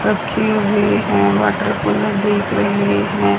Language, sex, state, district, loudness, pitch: Hindi, female, Haryana, Charkhi Dadri, -16 LUFS, 200 Hz